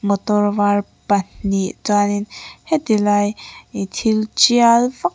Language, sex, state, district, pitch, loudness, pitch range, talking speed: Mizo, female, Mizoram, Aizawl, 205 Hz, -17 LUFS, 205-220 Hz, 115 wpm